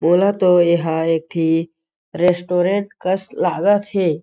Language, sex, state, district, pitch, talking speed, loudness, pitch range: Chhattisgarhi, male, Chhattisgarh, Jashpur, 175 Hz, 140 wpm, -18 LUFS, 165-190 Hz